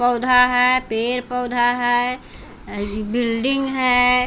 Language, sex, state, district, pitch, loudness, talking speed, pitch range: Hindi, female, Bihar, Patna, 245 Hz, -17 LUFS, 85 wpm, 240-250 Hz